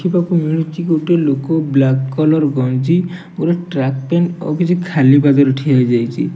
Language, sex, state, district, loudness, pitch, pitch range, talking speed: Odia, male, Odisha, Nuapada, -15 LUFS, 155 Hz, 135-170 Hz, 160 wpm